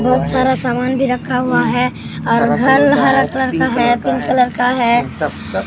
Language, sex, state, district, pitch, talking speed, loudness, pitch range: Hindi, male, Bihar, Katihar, 255 Hz, 190 wpm, -15 LUFS, 245-260 Hz